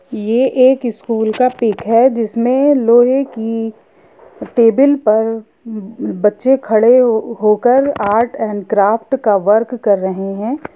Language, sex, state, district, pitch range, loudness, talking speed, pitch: Hindi, female, Jharkhand, Jamtara, 215-250 Hz, -14 LUFS, 125 wpm, 225 Hz